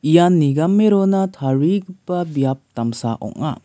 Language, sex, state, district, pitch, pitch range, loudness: Garo, male, Meghalaya, West Garo Hills, 165 Hz, 135-185 Hz, -18 LUFS